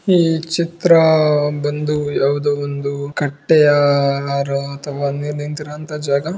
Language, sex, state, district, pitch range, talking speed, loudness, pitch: Kannada, female, Karnataka, Bijapur, 140-155 Hz, 95 wpm, -17 LUFS, 145 Hz